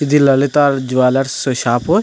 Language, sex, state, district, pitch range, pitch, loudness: Telugu, male, Andhra Pradesh, Anantapur, 130-145 Hz, 135 Hz, -14 LUFS